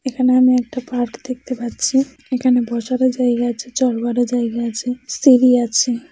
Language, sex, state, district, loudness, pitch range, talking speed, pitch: Bengali, female, West Bengal, North 24 Parganas, -17 LUFS, 240-255 Hz, 145 wpm, 250 Hz